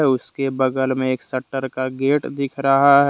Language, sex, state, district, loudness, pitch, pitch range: Hindi, male, Jharkhand, Deoghar, -20 LUFS, 135 Hz, 130-140 Hz